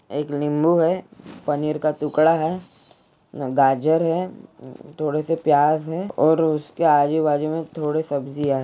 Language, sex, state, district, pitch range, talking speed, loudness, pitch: Hindi, male, Jharkhand, Jamtara, 145-160 Hz, 145 wpm, -21 LUFS, 150 Hz